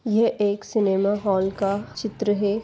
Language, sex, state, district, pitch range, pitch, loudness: Hindi, female, Chhattisgarh, Sarguja, 200-215 Hz, 205 Hz, -23 LUFS